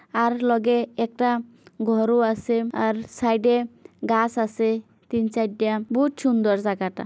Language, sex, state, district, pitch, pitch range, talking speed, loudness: Bengali, female, West Bengal, Kolkata, 230 Hz, 220-240 Hz, 135 wpm, -23 LUFS